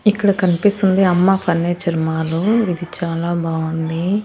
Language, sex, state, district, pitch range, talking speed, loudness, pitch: Telugu, female, Andhra Pradesh, Annamaya, 165-195 Hz, 115 wpm, -17 LUFS, 175 Hz